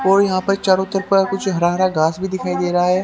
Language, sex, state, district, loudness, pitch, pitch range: Hindi, male, Haryana, Jhajjar, -17 LUFS, 190 Hz, 180-195 Hz